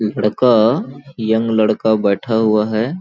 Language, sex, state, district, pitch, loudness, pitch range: Hindi, male, Chhattisgarh, Balrampur, 110 Hz, -16 LUFS, 105-115 Hz